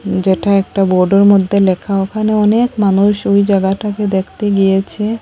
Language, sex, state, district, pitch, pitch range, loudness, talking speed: Bengali, female, Assam, Hailakandi, 200 Hz, 195-210 Hz, -13 LUFS, 140 wpm